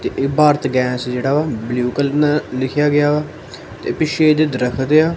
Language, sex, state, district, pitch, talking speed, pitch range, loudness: Punjabi, male, Punjab, Kapurthala, 145 Hz, 185 wpm, 130-150 Hz, -17 LUFS